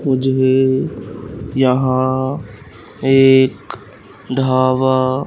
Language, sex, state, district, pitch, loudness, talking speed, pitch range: Hindi, male, Madhya Pradesh, Katni, 130 Hz, -15 LUFS, 55 wpm, 130-135 Hz